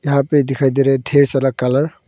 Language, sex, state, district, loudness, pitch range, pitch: Hindi, female, Arunachal Pradesh, Longding, -15 LUFS, 135-145 Hz, 140 Hz